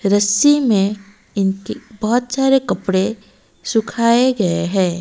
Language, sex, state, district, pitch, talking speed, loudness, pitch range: Hindi, female, Odisha, Malkangiri, 210 Hz, 110 wpm, -17 LUFS, 195-240 Hz